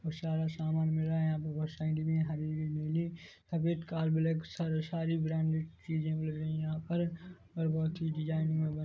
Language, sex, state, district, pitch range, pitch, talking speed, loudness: Hindi, male, Chhattisgarh, Bilaspur, 155-165 Hz, 160 Hz, 205 wpm, -34 LUFS